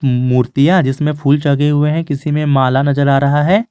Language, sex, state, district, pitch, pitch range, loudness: Hindi, male, Jharkhand, Garhwa, 145 Hz, 140-150 Hz, -13 LUFS